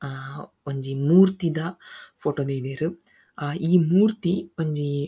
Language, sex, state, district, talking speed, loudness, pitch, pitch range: Tulu, male, Karnataka, Dakshina Kannada, 105 wpm, -24 LUFS, 160 Hz, 140-175 Hz